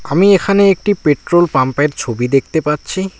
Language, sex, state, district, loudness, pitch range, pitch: Bengali, male, West Bengal, Alipurduar, -14 LUFS, 140-195 Hz, 160 Hz